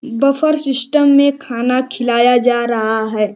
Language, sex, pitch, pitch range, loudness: Hindi, male, 250 Hz, 235-280 Hz, -14 LUFS